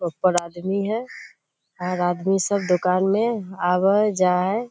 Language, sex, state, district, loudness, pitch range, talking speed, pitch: Hindi, female, Bihar, Kishanganj, -22 LUFS, 180-200 Hz, 155 wpm, 185 Hz